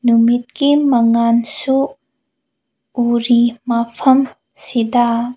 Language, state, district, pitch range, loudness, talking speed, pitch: Manipuri, Manipur, Imphal West, 235-265 Hz, -15 LUFS, 55 wpm, 240 Hz